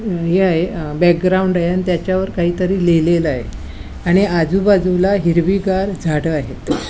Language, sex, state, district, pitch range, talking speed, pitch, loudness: Marathi, female, Goa, North and South Goa, 165-190 Hz, 150 wpm, 175 Hz, -16 LUFS